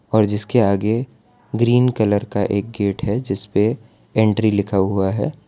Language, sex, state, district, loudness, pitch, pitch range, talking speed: Hindi, male, Gujarat, Valsad, -19 LUFS, 110 Hz, 100-120 Hz, 155 wpm